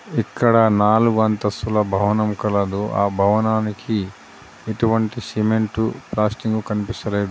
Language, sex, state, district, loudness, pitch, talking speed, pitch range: Telugu, male, Telangana, Adilabad, -19 LUFS, 110 Hz, 90 wpm, 105-110 Hz